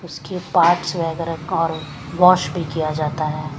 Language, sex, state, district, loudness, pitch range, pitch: Hindi, female, Chhattisgarh, Raipur, -19 LUFS, 155-175 Hz, 165 Hz